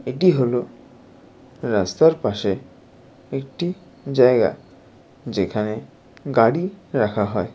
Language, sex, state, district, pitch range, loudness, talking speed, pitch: Bengali, male, West Bengal, Dakshin Dinajpur, 105-140 Hz, -21 LUFS, 65 wpm, 130 Hz